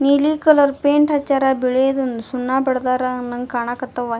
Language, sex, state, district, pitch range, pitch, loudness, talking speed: Kannada, female, Karnataka, Dharwad, 250-280 Hz, 260 Hz, -18 LUFS, 140 wpm